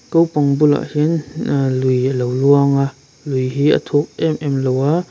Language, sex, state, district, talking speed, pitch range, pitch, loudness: Mizo, male, Mizoram, Aizawl, 210 wpm, 135-150 Hz, 140 Hz, -17 LUFS